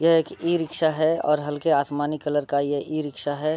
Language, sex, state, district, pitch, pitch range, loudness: Hindi, male, Bihar, Sitamarhi, 150 Hz, 145-160 Hz, -24 LUFS